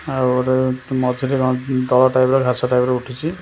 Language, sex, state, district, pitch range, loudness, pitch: Odia, male, Odisha, Khordha, 125-130 Hz, -18 LUFS, 130 Hz